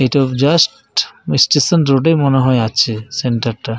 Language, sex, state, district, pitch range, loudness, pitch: Bengali, male, Jharkhand, Jamtara, 120-145 Hz, -14 LUFS, 135 Hz